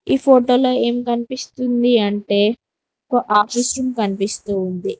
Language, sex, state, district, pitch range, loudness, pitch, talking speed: Telugu, female, Telangana, Mahabubabad, 205-255 Hz, -18 LUFS, 240 Hz, 120 wpm